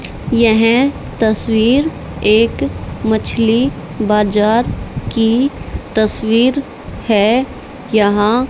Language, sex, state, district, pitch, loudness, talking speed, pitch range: Hindi, female, Haryana, Charkhi Dadri, 225 Hz, -14 LUFS, 65 wpm, 215-245 Hz